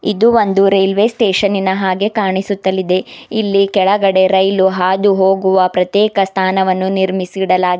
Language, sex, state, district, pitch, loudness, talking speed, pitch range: Kannada, female, Karnataka, Bidar, 190 Hz, -13 LUFS, 100 wpm, 190-200 Hz